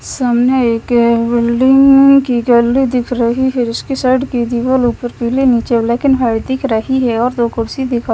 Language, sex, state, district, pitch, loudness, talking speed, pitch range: Hindi, female, Punjab, Kapurthala, 245 Hz, -13 LUFS, 190 wpm, 235-260 Hz